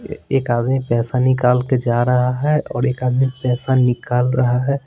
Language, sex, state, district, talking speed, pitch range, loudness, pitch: Hindi, male, Bihar, Patna, 185 wpm, 125-130 Hz, -18 LUFS, 125 Hz